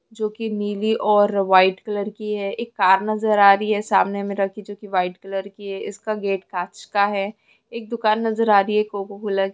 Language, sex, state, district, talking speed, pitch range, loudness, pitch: Hindi, female, Bihar, Jamui, 235 wpm, 195-215 Hz, -21 LUFS, 205 Hz